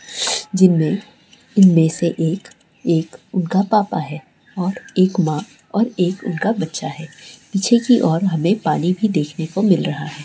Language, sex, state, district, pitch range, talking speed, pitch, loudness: Hindi, female, Jharkhand, Jamtara, 160-205 Hz, 165 wpm, 180 Hz, -18 LUFS